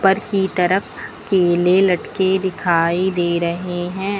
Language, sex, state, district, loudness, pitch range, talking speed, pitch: Hindi, female, Uttar Pradesh, Lucknow, -18 LUFS, 175-190 Hz, 130 wpm, 185 Hz